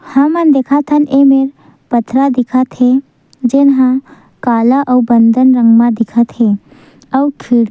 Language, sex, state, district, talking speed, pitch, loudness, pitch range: Chhattisgarhi, female, Chhattisgarh, Sukma, 150 wpm, 260 Hz, -11 LUFS, 240-275 Hz